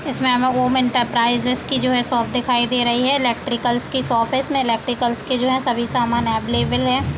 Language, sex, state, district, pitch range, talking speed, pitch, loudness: Hindi, female, Uttar Pradesh, Deoria, 235-255 Hz, 210 wpm, 245 Hz, -18 LUFS